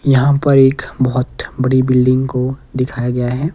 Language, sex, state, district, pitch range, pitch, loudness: Hindi, male, Himachal Pradesh, Shimla, 125-135 Hz, 130 Hz, -15 LUFS